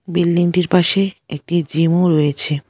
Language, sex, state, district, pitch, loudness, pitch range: Bengali, female, West Bengal, Alipurduar, 170 Hz, -16 LUFS, 150-180 Hz